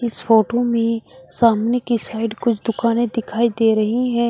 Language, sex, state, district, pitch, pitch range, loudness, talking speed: Hindi, male, Uttar Pradesh, Shamli, 230 Hz, 225-235 Hz, -18 LUFS, 165 wpm